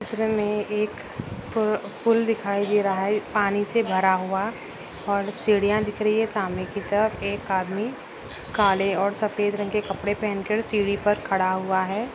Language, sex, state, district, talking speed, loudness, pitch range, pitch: Hindi, female, Uttar Pradesh, Budaun, 175 wpm, -24 LUFS, 195-215 Hz, 205 Hz